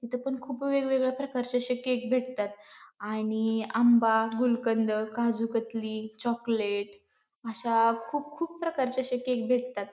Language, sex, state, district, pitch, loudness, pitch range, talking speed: Marathi, female, Maharashtra, Pune, 235 Hz, -29 LUFS, 225-260 Hz, 120 wpm